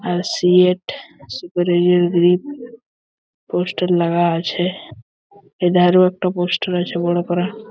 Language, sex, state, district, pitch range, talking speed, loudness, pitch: Bengali, male, West Bengal, Malda, 175-185 Hz, 110 wpm, -17 LUFS, 180 Hz